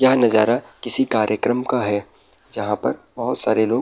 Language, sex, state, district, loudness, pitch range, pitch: Hindi, male, Bihar, Araria, -20 LUFS, 110-125 Hz, 120 Hz